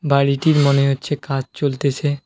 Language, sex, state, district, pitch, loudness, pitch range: Bengali, male, West Bengal, Alipurduar, 140 Hz, -18 LUFS, 140-145 Hz